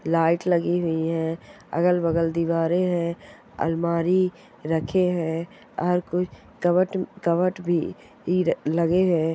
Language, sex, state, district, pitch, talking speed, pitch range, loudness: Hindi, female, Andhra Pradesh, Chittoor, 170 Hz, 105 wpm, 165-180 Hz, -24 LUFS